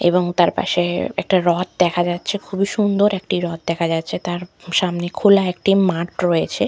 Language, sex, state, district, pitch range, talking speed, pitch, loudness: Bengali, female, West Bengal, Malda, 175-195 Hz, 170 wpm, 180 Hz, -19 LUFS